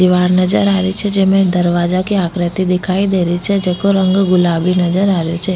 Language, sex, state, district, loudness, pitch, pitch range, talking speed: Rajasthani, female, Rajasthan, Nagaur, -14 LUFS, 185 Hz, 180-195 Hz, 215 wpm